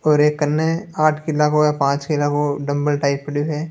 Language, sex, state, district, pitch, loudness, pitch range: Marwari, male, Rajasthan, Nagaur, 150 Hz, -19 LUFS, 145-155 Hz